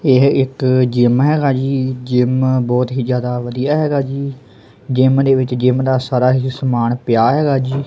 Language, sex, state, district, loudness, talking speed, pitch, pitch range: Punjabi, male, Punjab, Kapurthala, -15 LUFS, 175 wpm, 130 Hz, 125-135 Hz